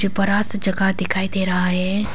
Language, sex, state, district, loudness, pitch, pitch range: Hindi, female, Arunachal Pradesh, Papum Pare, -18 LUFS, 195 Hz, 190-200 Hz